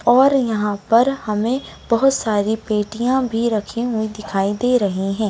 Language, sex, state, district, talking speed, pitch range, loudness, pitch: Hindi, female, Bihar, Begusarai, 160 wpm, 210-245 Hz, -19 LUFS, 225 Hz